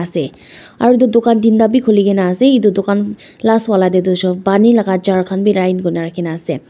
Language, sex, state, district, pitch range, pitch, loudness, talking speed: Nagamese, female, Nagaland, Dimapur, 185-225 Hz, 200 Hz, -13 LUFS, 205 wpm